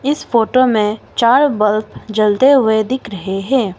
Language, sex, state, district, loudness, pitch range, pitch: Hindi, female, Arunachal Pradesh, Longding, -14 LUFS, 210-260 Hz, 220 Hz